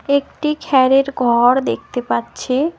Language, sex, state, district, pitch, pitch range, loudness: Bengali, female, West Bengal, Cooch Behar, 270 Hz, 245-285 Hz, -16 LUFS